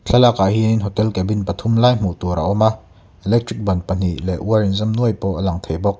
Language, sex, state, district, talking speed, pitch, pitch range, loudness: Mizo, male, Mizoram, Aizawl, 240 wpm, 100 Hz, 95-110 Hz, -18 LUFS